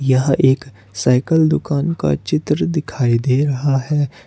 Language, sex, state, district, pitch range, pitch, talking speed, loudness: Hindi, male, Jharkhand, Ranchi, 125-150 Hz, 135 Hz, 140 wpm, -17 LUFS